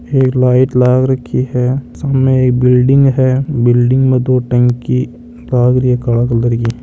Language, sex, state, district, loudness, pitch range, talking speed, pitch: Marwari, male, Rajasthan, Nagaur, -12 LUFS, 120-130 Hz, 165 wpm, 125 Hz